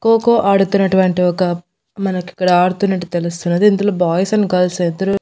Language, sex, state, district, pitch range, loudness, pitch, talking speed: Telugu, female, Andhra Pradesh, Annamaya, 180-200 Hz, -15 LUFS, 185 Hz, 125 wpm